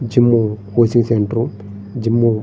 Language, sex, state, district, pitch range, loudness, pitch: Telugu, male, Andhra Pradesh, Srikakulam, 105-120 Hz, -16 LUFS, 115 Hz